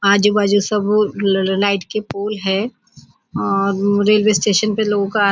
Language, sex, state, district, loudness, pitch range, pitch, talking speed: Hindi, female, Maharashtra, Nagpur, -17 LUFS, 200-210 Hz, 205 Hz, 170 wpm